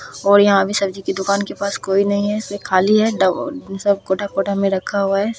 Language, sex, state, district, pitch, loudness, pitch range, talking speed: Hindi, female, Bihar, Lakhisarai, 200 Hz, -18 LUFS, 195-205 Hz, 245 wpm